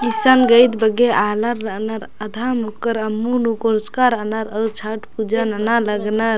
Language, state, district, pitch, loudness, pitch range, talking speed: Kurukh, Chhattisgarh, Jashpur, 220 Hz, -18 LUFS, 215-235 Hz, 150 wpm